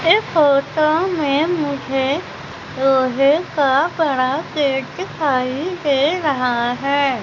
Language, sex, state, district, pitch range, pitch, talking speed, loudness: Hindi, female, Madhya Pradesh, Umaria, 270-315 Hz, 280 Hz, 100 wpm, -18 LUFS